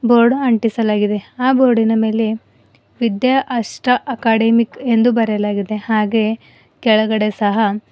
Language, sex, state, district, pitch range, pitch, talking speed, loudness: Kannada, female, Karnataka, Bidar, 215-240 Hz, 225 Hz, 100 wpm, -16 LUFS